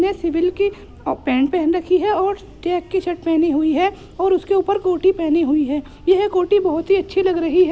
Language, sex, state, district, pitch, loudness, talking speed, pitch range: Hindi, female, Uttar Pradesh, Muzaffarnagar, 360 Hz, -18 LUFS, 240 wpm, 330-385 Hz